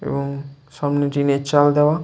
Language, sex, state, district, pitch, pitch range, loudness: Bengali, male, West Bengal, Jalpaiguri, 145 Hz, 140-145 Hz, -19 LUFS